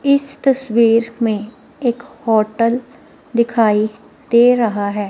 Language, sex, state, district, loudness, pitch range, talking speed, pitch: Hindi, female, Himachal Pradesh, Shimla, -16 LUFS, 220-265 Hz, 105 wpm, 235 Hz